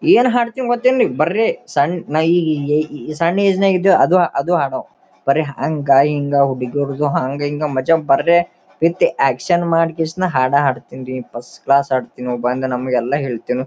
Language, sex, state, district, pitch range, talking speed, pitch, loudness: Kannada, male, Karnataka, Gulbarga, 135-170 Hz, 145 wpm, 150 Hz, -17 LUFS